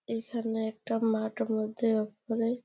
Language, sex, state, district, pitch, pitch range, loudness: Bengali, female, West Bengal, Jalpaiguri, 225 Hz, 220-230 Hz, -31 LUFS